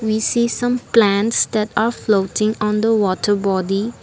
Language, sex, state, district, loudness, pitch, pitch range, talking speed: English, female, Assam, Kamrup Metropolitan, -18 LUFS, 215 Hz, 200-225 Hz, 165 wpm